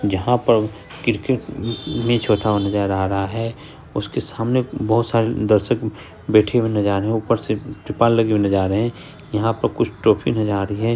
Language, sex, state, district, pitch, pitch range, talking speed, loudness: Hindi, male, Bihar, Saharsa, 110 Hz, 105-115 Hz, 210 wpm, -20 LUFS